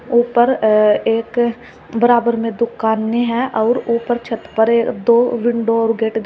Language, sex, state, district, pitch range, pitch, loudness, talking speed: Hindi, female, Uttar Pradesh, Shamli, 225-240 Hz, 235 Hz, -16 LUFS, 165 wpm